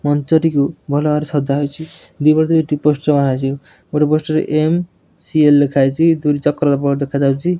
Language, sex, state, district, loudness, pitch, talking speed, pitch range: Odia, male, Odisha, Nuapada, -16 LUFS, 150 Hz, 120 wpm, 140-155 Hz